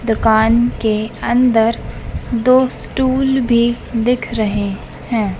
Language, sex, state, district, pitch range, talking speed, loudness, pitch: Hindi, female, Madhya Pradesh, Dhar, 220-245 Hz, 100 wpm, -16 LUFS, 235 Hz